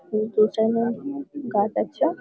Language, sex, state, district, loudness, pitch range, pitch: Bengali, female, West Bengal, Malda, -24 LUFS, 215-275 Hz, 225 Hz